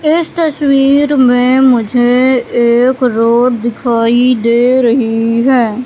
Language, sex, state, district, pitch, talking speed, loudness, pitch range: Hindi, female, Madhya Pradesh, Katni, 250 Hz, 100 wpm, -10 LUFS, 235-260 Hz